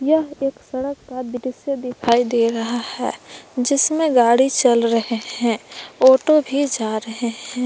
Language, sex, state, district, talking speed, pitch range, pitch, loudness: Hindi, female, Jharkhand, Palamu, 150 wpm, 235-275 Hz, 250 Hz, -19 LUFS